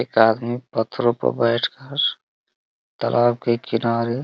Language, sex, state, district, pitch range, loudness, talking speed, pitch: Hindi, male, Uttar Pradesh, Ghazipur, 115-120 Hz, -21 LUFS, 140 wpm, 120 Hz